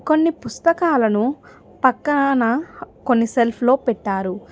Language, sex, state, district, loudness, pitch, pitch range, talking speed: Telugu, female, Telangana, Hyderabad, -19 LUFS, 250 Hz, 230-295 Hz, 95 wpm